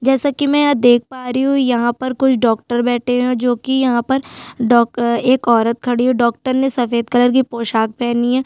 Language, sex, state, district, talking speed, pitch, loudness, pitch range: Hindi, female, Chhattisgarh, Sukma, 220 wpm, 245 Hz, -16 LUFS, 235-260 Hz